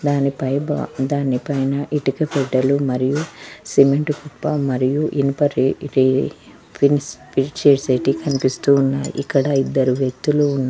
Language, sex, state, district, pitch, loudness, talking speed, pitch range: Telugu, female, Telangana, Mahabubabad, 140 Hz, -19 LUFS, 130 wpm, 135-145 Hz